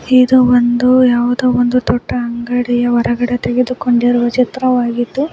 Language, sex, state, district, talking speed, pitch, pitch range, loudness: Kannada, female, Karnataka, Bangalore, 100 wpm, 245 Hz, 240-250 Hz, -13 LUFS